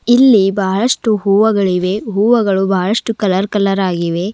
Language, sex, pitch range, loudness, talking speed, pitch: Kannada, female, 190-220 Hz, -14 LUFS, 110 wpm, 200 Hz